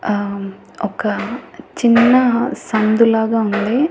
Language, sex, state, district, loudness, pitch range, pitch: Telugu, female, Andhra Pradesh, Annamaya, -16 LUFS, 210-240 Hz, 225 Hz